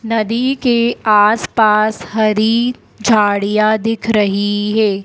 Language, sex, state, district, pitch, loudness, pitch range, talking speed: Hindi, female, Madhya Pradesh, Dhar, 215 Hz, -14 LUFS, 210-230 Hz, 95 wpm